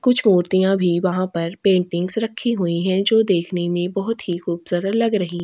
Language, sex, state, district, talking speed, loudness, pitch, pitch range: Hindi, female, Chhattisgarh, Kabirdham, 200 wpm, -19 LUFS, 185 Hz, 175-210 Hz